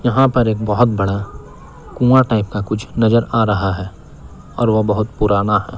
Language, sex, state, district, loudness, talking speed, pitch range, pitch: Hindi, male, Jharkhand, Palamu, -16 LUFS, 185 wpm, 100-115 Hz, 110 Hz